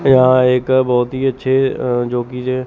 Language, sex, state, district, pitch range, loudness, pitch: Hindi, male, Chandigarh, Chandigarh, 125-130 Hz, -15 LUFS, 130 Hz